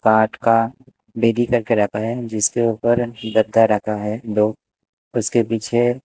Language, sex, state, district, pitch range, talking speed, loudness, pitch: Hindi, male, Maharashtra, Mumbai Suburban, 110-120 Hz, 130 wpm, -19 LUFS, 115 Hz